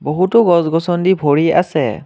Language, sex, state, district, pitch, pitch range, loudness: Assamese, male, Assam, Kamrup Metropolitan, 175 Hz, 160-185 Hz, -14 LUFS